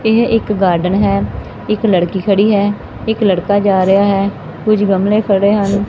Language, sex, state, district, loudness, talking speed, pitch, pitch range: Punjabi, female, Punjab, Fazilka, -13 LUFS, 175 wpm, 200 Hz, 190-210 Hz